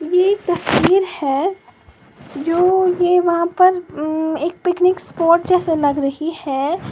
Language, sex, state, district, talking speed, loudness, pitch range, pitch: Hindi, female, Uttar Pradesh, Lalitpur, 130 wpm, -17 LUFS, 315-365 Hz, 350 Hz